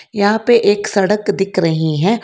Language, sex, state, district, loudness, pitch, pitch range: Hindi, female, Karnataka, Bangalore, -15 LUFS, 205 Hz, 195-210 Hz